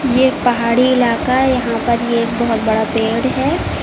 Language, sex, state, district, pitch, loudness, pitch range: Hindi, female, Uttar Pradesh, Lucknow, 240 Hz, -15 LUFS, 230-255 Hz